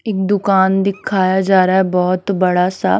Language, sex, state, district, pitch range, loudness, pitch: Hindi, female, Himachal Pradesh, Shimla, 185-195 Hz, -15 LUFS, 190 Hz